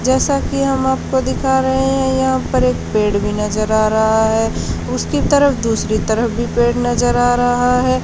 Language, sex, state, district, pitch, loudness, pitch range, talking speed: Hindi, female, Haryana, Charkhi Dadri, 240 Hz, -16 LUFS, 215-260 Hz, 195 wpm